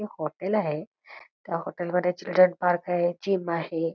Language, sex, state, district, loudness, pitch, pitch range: Marathi, female, Karnataka, Belgaum, -26 LUFS, 175 Hz, 170-185 Hz